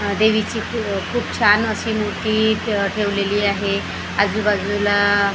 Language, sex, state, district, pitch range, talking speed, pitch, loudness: Marathi, female, Maharashtra, Gondia, 200-215 Hz, 100 wpm, 205 Hz, -19 LUFS